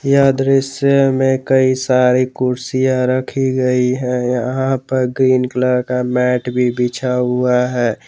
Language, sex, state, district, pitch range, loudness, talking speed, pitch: Hindi, male, Jharkhand, Garhwa, 125-130 Hz, -15 LUFS, 140 wpm, 130 Hz